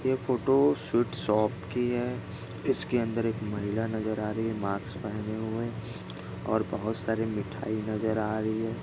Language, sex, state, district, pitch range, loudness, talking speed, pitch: Hindi, male, Maharashtra, Aurangabad, 110-115 Hz, -30 LUFS, 170 wpm, 110 Hz